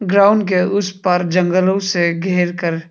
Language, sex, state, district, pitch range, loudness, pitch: Hindi, male, Arunachal Pradesh, Papum Pare, 175-195 Hz, -16 LUFS, 180 Hz